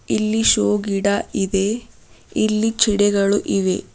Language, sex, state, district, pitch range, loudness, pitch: Kannada, female, Karnataka, Bidar, 185-210 Hz, -18 LUFS, 200 Hz